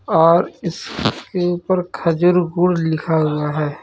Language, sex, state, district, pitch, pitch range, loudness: Hindi, male, Jharkhand, Ranchi, 170 Hz, 160-180 Hz, -18 LUFS